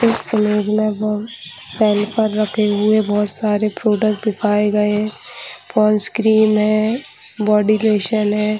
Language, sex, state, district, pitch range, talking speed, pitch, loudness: Hindi, female, Chhattisgarh, Bastar, 210-215 Hz, 140 wpm, 215 Hz, -17 LUFS